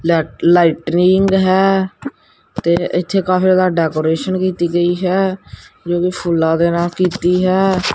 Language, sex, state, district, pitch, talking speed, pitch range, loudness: Punjabi, male, Punjab, Kapurthala, 180 Hz, 130 wpm, 170-185 Hz, -15 LUFS